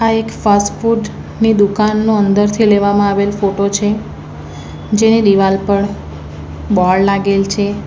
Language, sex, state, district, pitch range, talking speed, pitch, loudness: Gujarati, female, Gujarat, Valsad, 200-215 Hz, 130 wpm, 205 Hz, -13 LUFS